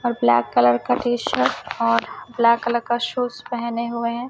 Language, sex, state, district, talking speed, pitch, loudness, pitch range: Hindi, female, Chhattisgarh, Raipur, 180 wpm, 235 Hz, -21 LUFS, 230-240 Hz